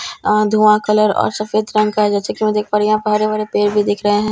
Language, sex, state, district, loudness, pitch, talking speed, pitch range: Hindi, female, Bihar, Katihar, -15 LUFS, 210 Hz, 320 wpm, 210-215 Hz